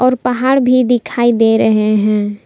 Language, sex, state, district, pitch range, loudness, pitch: Hindi, female, Jharkhand, Palamu, 215-255 Hz, -13 LUFS, 240 Hz